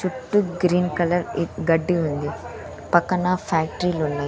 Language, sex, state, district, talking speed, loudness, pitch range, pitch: Telugu, female, Andhra Pradesh, Sri Satya Sai, 110 wpm, -22 LUFS, 160-180 Hz, 175 Hz